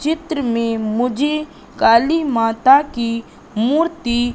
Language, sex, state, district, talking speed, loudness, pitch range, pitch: Hindi, female, Madhya Pradesh, Katni, 95 wpm, -17 LUFS, 230-300 Hz, 245 Hz